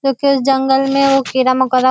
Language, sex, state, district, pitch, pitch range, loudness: Hindi, female, Bihar, Kishanganj, 270 Hz, 260-275 Hz, -14 LUFS